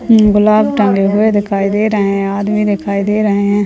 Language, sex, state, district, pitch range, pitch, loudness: Hindi, male, Bihar, Purnia, 200-210 Hz, 205 Hz, -12 LUFS